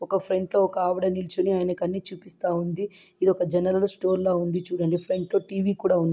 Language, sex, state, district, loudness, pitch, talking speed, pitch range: Telugu, female, Andhra Pradesh, Guntur, -25 LUFS, 185 Hz, 195 wpm, 180-190 Hz